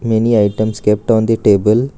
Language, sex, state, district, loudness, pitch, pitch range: English, male, Karnataka, Bangalore, -13 LUFS, 110 Hz, 105-115 Hz